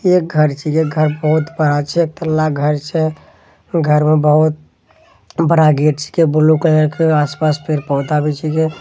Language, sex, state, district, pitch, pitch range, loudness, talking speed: Angika, male, Bihar, Begusarai, 155 Hz, 150-160 Hz, -15 LUFS, 155 wpm